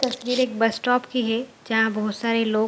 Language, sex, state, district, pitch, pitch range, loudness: Hindi, female, Bihar, Samastipur, 230 Hz, 225-250 Hz, -23 LUFS